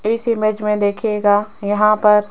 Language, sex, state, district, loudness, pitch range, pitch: Hindi, female, Rajasthan, Jaipur, -16 LUFS, 205-215 Hz, 210 Hz